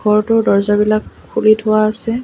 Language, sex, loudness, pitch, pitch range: Assamese, female, -14 LUFS, 215 Hz, 210-225 Hz